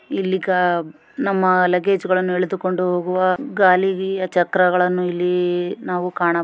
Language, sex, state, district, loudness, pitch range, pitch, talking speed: Kannada, female, Karnataka, Shimoga, -19 LUFS, 180-185 Hz, 180 Hz, 110 wpm